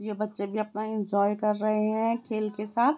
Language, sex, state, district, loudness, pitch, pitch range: Hindi, female, Bihar, Begusarai, -28 LUFS, 215 Hz, 210-220 Hz